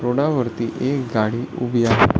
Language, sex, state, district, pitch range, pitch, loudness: Marathi, male, Maharashtra, Solapur, 115-130 Hz, 120 Hz, -21 LUFS